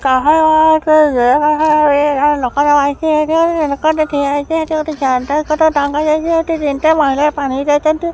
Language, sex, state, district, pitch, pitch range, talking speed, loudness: Odia, male, Odisha, Khordha, 300 Hz, 285-315 Hz, 145 wpm, -13 LUFS